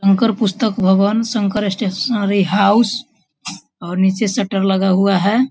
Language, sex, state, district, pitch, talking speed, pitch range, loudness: Hindi, male, Bihar, Sitamarhi, 200 Hz, 140 wpm, 190-220 Hz, -16 LUFS